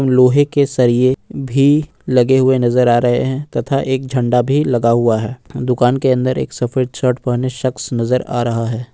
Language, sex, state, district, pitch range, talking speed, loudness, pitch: Hindi, male, Jharkhand, Ranchi, 120-130 Hz, 195 wpm, -15 LUFS, 125 Hz